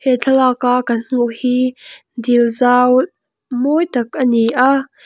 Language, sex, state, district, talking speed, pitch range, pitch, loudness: Mizo, female, Mizoram, Aizawl, 130 wpm, 245-260 Hz, 250 Hz, -15 LUFS